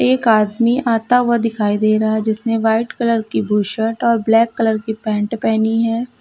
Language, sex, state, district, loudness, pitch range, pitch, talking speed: Hindi, female, Uttar Pradesh, Lucknow, -16 LUFS, 220-235 Hz, 225 Hz, 205 wpm